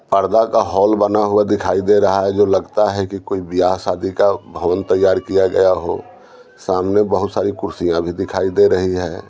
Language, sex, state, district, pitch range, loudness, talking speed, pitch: Hindi, male, Bihar, Patna, 95-105 Hz, -16 LUFS, 195 wpm, 95 Hz